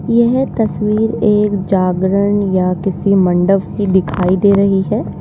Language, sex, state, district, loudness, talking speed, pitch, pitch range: Hindi, female, Uttar Pradesh, Lalitpur, -14 LUFS, 140 wpm, 200 Hz, 185-210 Hz